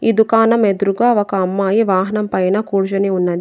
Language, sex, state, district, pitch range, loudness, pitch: Telugu, female, Telangana, Adilabad, 190-220 Hz, -15 LUFS, 200 Hz